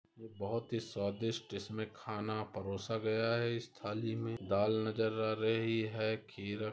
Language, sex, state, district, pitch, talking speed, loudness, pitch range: Hindi, female, Rajasthan, Nagaur, 110 Hz, 170 wpm, -37 LUFS, 105-115 Hz